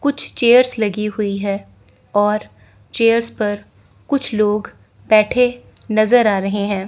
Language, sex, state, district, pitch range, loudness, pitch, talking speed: Hindi, female, Chandigarh, Chandigarh, 195-230 Hz, -17 LUFS, 210 Hz, 130 wpm